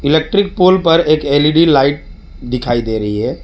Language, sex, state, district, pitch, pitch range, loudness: Hindi, male, Gujarat, Valsad, 145 Hz, 120-165 Hz, -13 LUFS